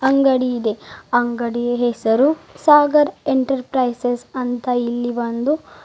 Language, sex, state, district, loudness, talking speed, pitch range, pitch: Kannada, female, Karnataka, Bidar, -18 LUFS, 90 wpm, 240-270 Hz, 245 Hz